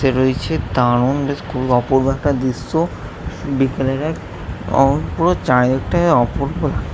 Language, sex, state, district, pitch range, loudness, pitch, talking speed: Bengali, male, West Bengal, Jhargram, 125-140 Hz, -17 LUFS, 135 Hz, 120 wpm